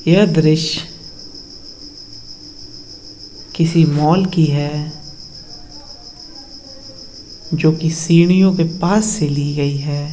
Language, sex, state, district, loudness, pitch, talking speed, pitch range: Hindi, male, Uttar Pradesh, Varanasi, -15 LUFS, 155 Hz, 85 wpm, 150-165 Hz